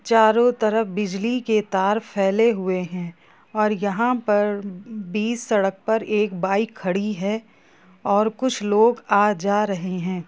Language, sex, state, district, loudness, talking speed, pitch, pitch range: Hindi, female, Jharkhand, Sahebganj, -21 LUFS, 145 wpm, 210 Hz, 195-220 Hz